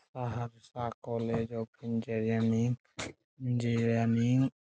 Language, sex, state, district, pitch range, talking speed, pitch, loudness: Maithili, male, Bihar, Saharsa, 115-120 Hz, 50 wpm, 115 Hz, -33 LUFS